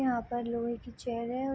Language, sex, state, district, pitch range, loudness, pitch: Hindi, female, Bihar, Darbhanga, 235-250 Hz, -34 LUFS, 240 Hz